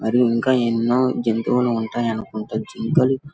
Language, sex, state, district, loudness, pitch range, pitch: Telugu, male, Andhra Pradesh, Guntur, -20 LUFS, 115-125 Hz, 120 Hz